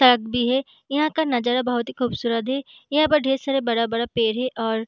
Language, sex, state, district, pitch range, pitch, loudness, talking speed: Hindi, female, Chhattisgarh, Balrampur, 235-270 Hz, 245 Hz, -22 LUFS, 220 wpm